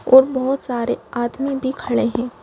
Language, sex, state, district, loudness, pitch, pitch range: Hindi, female, Madhya Pradesh, Bhopal, -20 LUFS, 260 Hz, 240-270 Hz